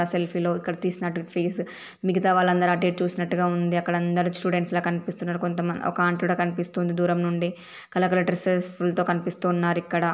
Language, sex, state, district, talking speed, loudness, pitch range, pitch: Telugu, female, Andhra Pradesh, Srikakulam, 160 wpm, -25 LUFS, 175-180 Hz, 175 Hz